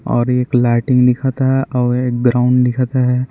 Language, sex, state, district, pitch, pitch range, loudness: Chhattisgarhi, male, Chhattisgarh, Raigarh, 125 Hz, 125-130 Hz, -15 LUFS